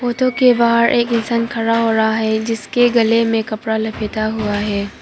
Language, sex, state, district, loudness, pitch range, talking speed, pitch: Hindi, female, Arunachal Pradesh, Papum Pare, -16 LUFS, 220-235 Hz, 190 wpm, 225 Hz